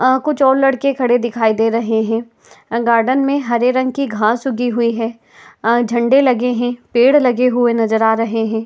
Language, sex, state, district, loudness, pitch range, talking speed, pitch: Hindi, female, Uttar Pradesh, Etah, -15 LUFS, 230-255 Hz, 210 wpm, 240 Hz